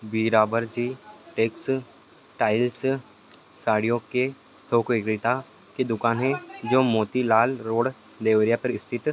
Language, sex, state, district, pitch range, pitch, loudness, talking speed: Hindi, male, Uttar Pradesh, Deoria, 110-125 Hz, 115 Hz, -24 LUFS, 110 wpm